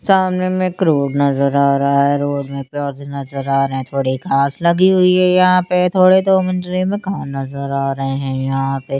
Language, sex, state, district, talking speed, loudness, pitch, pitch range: Hindi, female, Chandigarh, Chandigarh, 200 wpm, -16 LUFS, 140 Hz, 135-185 Hz